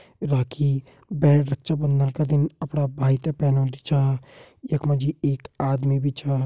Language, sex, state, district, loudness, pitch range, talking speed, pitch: Hindi, male, Uttarakhand, Tehri Garhwal, -23 LUFS, 135-150 Hz, 160 wpm, 140 Hz